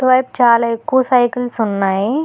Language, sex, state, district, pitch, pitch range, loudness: Telugu, female, Telangana, Hyderabad, 245 Hz, 225-255 Hz, -15 LUFS